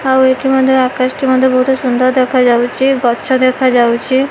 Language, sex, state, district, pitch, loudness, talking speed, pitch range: Odia, female, Odisha, Malkangiri, 260 Hz, -12 LUFS, 165 wpm, 250-265 Hz